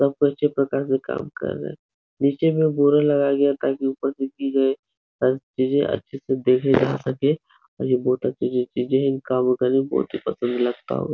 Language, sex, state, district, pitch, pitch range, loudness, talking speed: Hindi, male, Uttar Pradesh, Etah, 135 Hz, 125-140 Hz, -22 LUFS, 215 wpm